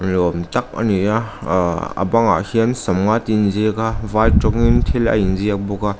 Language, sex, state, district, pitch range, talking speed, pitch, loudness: Mizo, male, Mizoram, Aizawl, 95-115 Hz, 220 wpm, 105 Hz, -18 LUFS